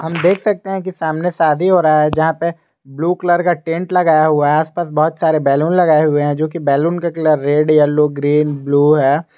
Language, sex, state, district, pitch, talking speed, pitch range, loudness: Hindi, male, Jharkhand, Garhwa, 160 Hz, 225 wpm, 150-170 Hz, -15 LUFS